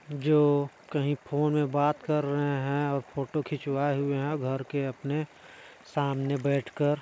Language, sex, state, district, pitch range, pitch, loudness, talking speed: Hindi, male, Chhattisgarh, Balrampur, 140-150 Hz, 145 Hz, -29 LUFS, 155 wpm